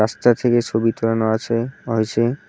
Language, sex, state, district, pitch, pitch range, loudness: Bengali, male, West Bengal, Cooch Behar, 115 Hz, 110-120 Hz, -19 LUFS